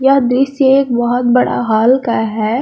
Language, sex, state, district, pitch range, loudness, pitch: Hindi, female, Jharkhand, Garhwa, 235-270 Hz, -13 LUFS, 245 Hz